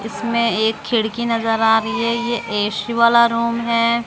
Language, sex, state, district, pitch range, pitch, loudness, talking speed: Hindi, female, Bihar, West Champaran, 225-235 Hz, 230 Hz, -18 LUFS, 175 wpm